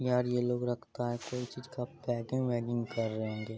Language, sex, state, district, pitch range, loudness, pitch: Hindi, male, Bihar, Araria, 115-125 Hz, -35 LUFS, 120 Hz